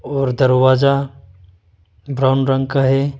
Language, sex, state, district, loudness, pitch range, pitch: Hindi, male, Arunachal Pradesh, Lower Dibang Valley, -15 LUFS, 120-135 Hz, 135 Hz